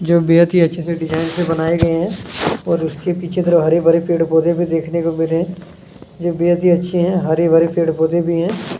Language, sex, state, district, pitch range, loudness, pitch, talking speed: Hindi, male, Chhattisgarh, Kabirdham, 165-175 Hz, -16 LUFS, 170 Hz, 240 wpm